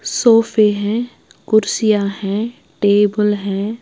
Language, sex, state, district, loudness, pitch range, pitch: Hindi, female, Punjab, Kapurthala, -16 LUFS, 205-230 Hz, 210 Hz